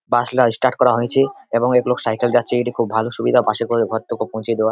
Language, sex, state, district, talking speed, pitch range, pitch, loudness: Bengali, male, West Bengal, Purulia, 280 wpm, 115-125 Hz, 120 Hz, -18 LUFS